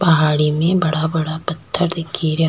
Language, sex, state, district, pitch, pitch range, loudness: Rajasthani, female, Rajasthan, Churu, 160 Hz, 155-170 Hz, -18 LUFS